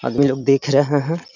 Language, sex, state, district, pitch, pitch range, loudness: Hindi, male, Bihar, Gaya, 140 Hz, 135-145 Hz, -18 LUFS